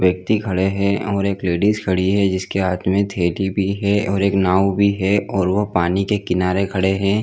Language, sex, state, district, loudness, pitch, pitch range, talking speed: Hindi, male, Chhattisgarh, Bilaspur, -18 LUFS, 95 Hz, 95-100 Hz, 215 wpm